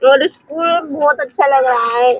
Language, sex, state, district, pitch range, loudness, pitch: Hindi, female, Uttar Pradesh, Muzaffarnagar, 250-295 Hz, -14 LUFS, 275 Hz